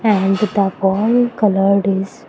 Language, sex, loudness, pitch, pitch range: English, female, -16 LUFS, 200 Hz, 195-215 Hz